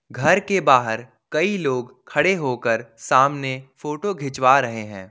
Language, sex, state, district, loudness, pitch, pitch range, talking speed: Hindi, male, Jharkhand, Ranchi, -20 LUFS, 130 Hz, 120-150 Hz, 140 wpm